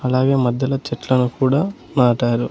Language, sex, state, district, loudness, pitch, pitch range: Telugu, male, Andhra Pradesh, Sri Satya Sai, -18 LUFS, 130 Hz, 120-135 Hz